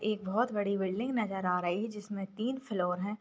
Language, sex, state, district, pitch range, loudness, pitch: Hindi, female, Bihar, Begusarai, 190-220 Hz, -33 LUFS, 205 Hz